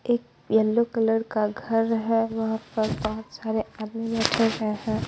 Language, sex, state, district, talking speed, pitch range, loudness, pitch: Hindi, female, Bihar, Patna, 165 wpm, 220-225 Hz, -25 LUFS, 225 Hz